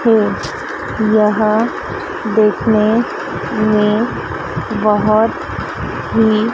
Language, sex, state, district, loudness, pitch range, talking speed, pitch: Hindi, female, Madhya Pradesh, Dhar, -16 LUFS, 210-225 Hz, 55 wpm, 215 Hz